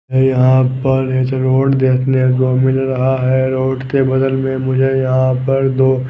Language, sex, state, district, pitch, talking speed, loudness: Hindi, male, Odisha, Nuapada, 130 Hz, 175 wpm, -14 LUFS